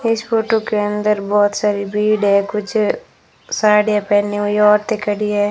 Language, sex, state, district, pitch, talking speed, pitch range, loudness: Hindi, female, Rajasthan, Bikaner, 210 Hz, 165 wpm, 205-215 Hz, -16 LUFS